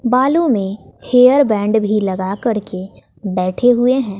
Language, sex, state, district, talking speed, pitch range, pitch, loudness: Hindi, female, Bihar, West Champaran, 145 wpm, 195-250 Hz, 215 Hz, -15 LUFS